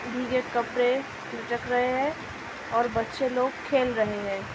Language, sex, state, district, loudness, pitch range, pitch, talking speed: Hindi, female, Uttar Pradesh, Budaun, -27 LUFS, 235-255 Hz, 245 Hz, 160 wpm